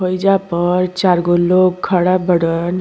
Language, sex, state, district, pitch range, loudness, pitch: Bhojpuri, female, Uttar Pradesh, Gorakhpur, 175-185 Hz, -15 LUFS, 180 Hz